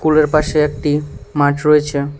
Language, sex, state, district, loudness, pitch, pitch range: Bengali, male, Tripura, West Tripura, -16 LUFS, 150 Hz, 145-150 Hz